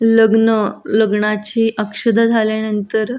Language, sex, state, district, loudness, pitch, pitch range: Marathi, female, Maharashtra, Solapur, -15 LUFS, 220 Hz, 215-225 Hz